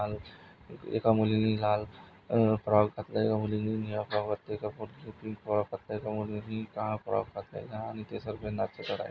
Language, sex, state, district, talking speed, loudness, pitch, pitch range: Marathi, male, Maharashtra, Nagpur, 180 wpm, -32 LUFS, 105 Hz, 105-110 Hz